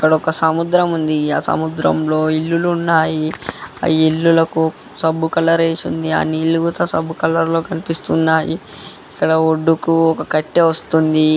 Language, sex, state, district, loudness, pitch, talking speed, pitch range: Telugu, male, Andhra Pradesh, Guntur, -16 LUFS, 160 Hz, 125 wpm, 155-165 Hz